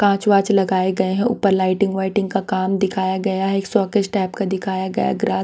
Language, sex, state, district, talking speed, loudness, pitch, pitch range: Hindi, female, Punjab, Pathankot, 220 wpm, -19 LUFS, 195 Hz, 190-200 Hz